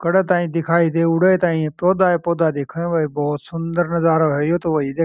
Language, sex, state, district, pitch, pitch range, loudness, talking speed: Marwari, male, Rajasthan, Churu, 165 Hz, 160-175 Hz, -18 LUFS, 180 wpm